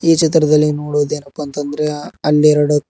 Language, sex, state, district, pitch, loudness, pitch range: Kannada, male, Karnataka, Koppal, 150 Hz, -15 LUFS, 145-150 Hz